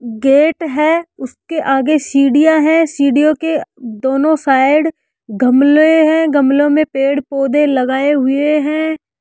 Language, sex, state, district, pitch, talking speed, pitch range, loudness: Hindi, male, Rajasthan, Jaipur, 290 Hz, 125 wpm, 270-310 Hz, -13 LUFS